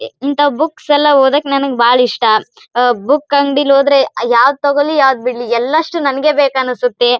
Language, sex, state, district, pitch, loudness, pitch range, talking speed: Kannada, male, Karnataka, Bijapur, 275 Hz, -12 LUFS, 245-290 Hz, 150 wpm